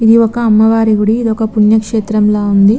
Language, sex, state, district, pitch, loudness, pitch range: Telugu, female, Telangana, Nalgonda, 220 Hz, -11 LUFS, 210-225 Hz